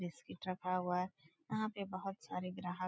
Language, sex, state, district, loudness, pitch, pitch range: Hindi, female, Uttar Pradesh, Etah, -42 LUFS, 185 Hz, 180-195 Hz